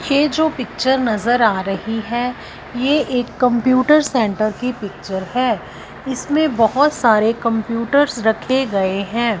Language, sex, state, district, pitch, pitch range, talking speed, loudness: Hindi, female, Punjab, Fazilka, 245 Hz, 220-265 Hz, 135 wpm, -17 LUFS